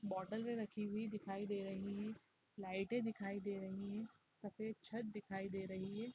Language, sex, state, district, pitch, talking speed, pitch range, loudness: Hindi, female, Chhattisgarh, Rajnandgaon, 205 Hz, 175 wpm, 195-220 Hz, -46 LUFS